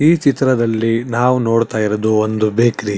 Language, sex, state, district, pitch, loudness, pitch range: Kannada, male, Karnataka, Chamarajanagar, 115 Hz, -15 LUFS, 110-125 Hz